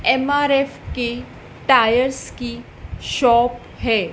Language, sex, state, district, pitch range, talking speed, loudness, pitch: Hindi, female, Madhya Pradesh, Dhar, 235-265 Hz, 85 wpm, -19 LUFS, 245 Hz